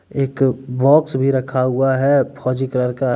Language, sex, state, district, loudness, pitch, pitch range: Hindi, male, Jharkhand, Deoghar, -17 LUFS, 130 Hz, 130-135 Hz